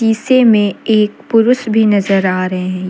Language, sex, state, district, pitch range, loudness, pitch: Hindi, female, Jharkhand, Deoghar, 185-225 Hz, -13 LUFS, 210 Hz